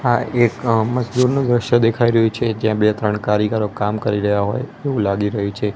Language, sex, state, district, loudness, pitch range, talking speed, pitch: Gujarati, male, Gujarat, Gandhinagar, -18 LUFS, 105-120 Hz, 210 wpm, 110 Hz